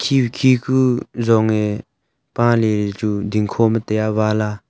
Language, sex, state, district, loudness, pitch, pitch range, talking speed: Wancho, male, Arunachal Pradesh, Longding, -18 LUFS, 110 Hz, 105-120 Hz, 165 wpm